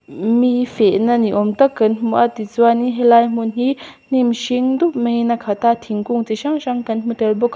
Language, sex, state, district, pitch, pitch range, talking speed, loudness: Mizo, female, Mizoram, Aizawl, 235 Hz, 225-250 Hz, 220 wpm, -16 LUFS